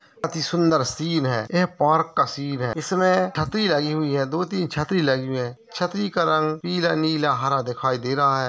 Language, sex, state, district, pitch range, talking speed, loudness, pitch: Hindi, male, Uttar Pradesh, Hamirpur, 140-175 Hz, 200 wpm, -22 LUFS, 155 Hz